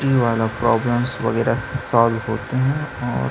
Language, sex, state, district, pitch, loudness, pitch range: Hindi, male, Chhattisgarh, Sukma, 120 Hz, -20 LUFS, 115-130 Hz